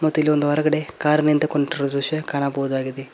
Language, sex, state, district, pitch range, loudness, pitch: Kannada, male, Karnataka, Koppal, 140-155 Hz, -21 LUFS, 150 Hz